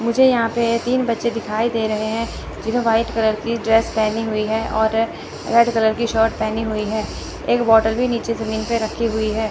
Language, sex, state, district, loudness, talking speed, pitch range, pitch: Hindi, male, Chandigarh, Chandigarh, -19 LUFS, 215 wpm, 220-235 Hz, 225 Hz